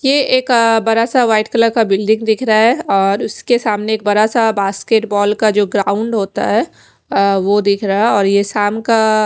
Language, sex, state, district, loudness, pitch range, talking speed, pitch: Hindi, female, Odisha, Khordha, -14 LUFS, 205-230 Hz, 220 wpm, 215 Hz